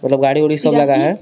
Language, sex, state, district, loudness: Hindi, male, Jharkhand, Garhwa, -14 LUFS